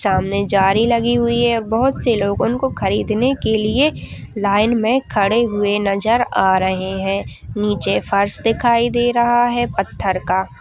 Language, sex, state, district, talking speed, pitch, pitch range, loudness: Hindi, female, Chhattisgarh, Rajnandgaon, 165 wpm, 220 Hz, 200-240 Hz, -17 LUFS